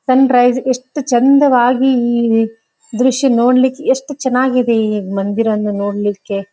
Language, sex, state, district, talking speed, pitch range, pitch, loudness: Kannada, female, Karnataka, Dharwad, 110 wpm, 220-260 Hz, 245 Hz, -14 LUFS